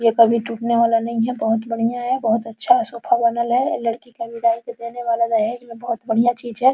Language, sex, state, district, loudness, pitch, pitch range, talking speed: Hindi, female, Bihar, Araria, -20 LUFS, 235 Hz, 230-255 Hz, 230 wpm